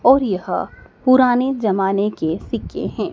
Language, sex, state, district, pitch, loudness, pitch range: Hindi, female, Madhya Pradesh, Dhar, 215 Hz, -18 LUFS, 195-255 Hz